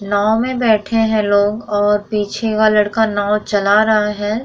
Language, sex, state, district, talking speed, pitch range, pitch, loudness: Hindi, female, Bihar, Vaishali, 175 wpm, 205-220 Hz, 210 Hz, -15 LUFS